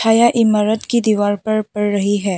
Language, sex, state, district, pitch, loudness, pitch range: Hindi, female, Tripura, West Tripura, 215 Hz, -16 LUFS, 205-225 Hz